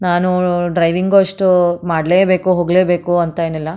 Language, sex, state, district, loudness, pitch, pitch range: Kannada, female, Karnataka, Mysore, -14 LUFS, 175 Hz, 170-185 Hz